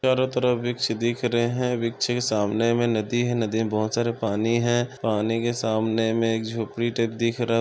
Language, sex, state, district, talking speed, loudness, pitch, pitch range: Hindi, male, Chhattisgarh, Sukma, 215 wpm, -24 LUFS, 115 Hz, 110-120 Hz